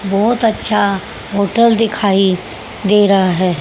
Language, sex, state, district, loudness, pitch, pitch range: Hindi, female, Haryana, Jhajjar, -14 LUFS, 200 Hz, 195-215 Hz